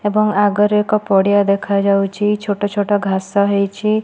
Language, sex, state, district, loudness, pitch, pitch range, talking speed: Odia, female, Odisha, Malkangiri, -16 LUFS, 205 Hz, 200-210 Hz, 120 wpm